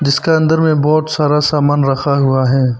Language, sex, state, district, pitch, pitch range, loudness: Hindi, male, Arunachal Pradesh, Papum Pare, 145 Hz, 135-155 Hz, -13 LUFS